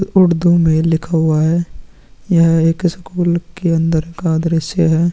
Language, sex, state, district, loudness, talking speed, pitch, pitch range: Hindi, male, Chhattisgarh, Sukma, -15 LUFS, 165 wpm, 165 Hz, 165-175 Hz